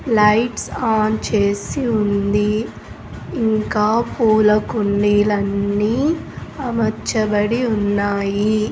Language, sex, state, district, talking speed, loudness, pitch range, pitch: Telugu, female, Andhra Pradesh, Sri Satya Sai, 60 wpm, -18 LUFS, 205-220 Hz, 210 Hz